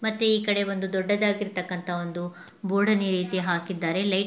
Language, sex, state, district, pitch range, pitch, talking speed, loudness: Kannada, female, Karnataka, Mysore, 180-205 Hz, 190 Hz, 110 wpm, -26 LUFS